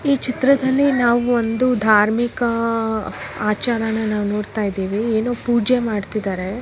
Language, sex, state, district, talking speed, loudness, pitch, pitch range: Kannada, male, Karnataka, Raichur, 90 wpm, -19 LUFS, 230 Hz, 210-245 Hz